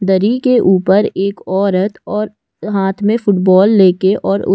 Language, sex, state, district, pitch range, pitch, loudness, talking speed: Hindi, female, Chhattisgarh, Kabirdham, 190-210 Hz, 195 Hz, -13 LUFS, 160 wpm